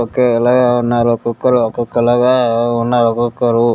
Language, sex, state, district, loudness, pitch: Telugu, male, Andhra Pradesh, Srikakulam, -14 LUFS, 120 Hz